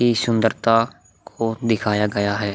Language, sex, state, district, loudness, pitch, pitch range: Hindi, male, Bihar, Vaishali, -20 LUFS, 110 Hz, 105-115 Hz